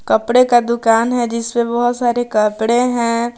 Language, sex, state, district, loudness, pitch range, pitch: Hindi, female, Jharkhand, Palamu, -15 LUFS, 230-240 Hz, 235 Hz